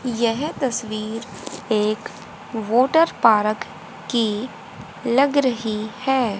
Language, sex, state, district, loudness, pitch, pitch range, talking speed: Hindi, female, Haryana, Rohtak, -21 LUFS, 230 Hz, 215-260 Hz, 85 wpm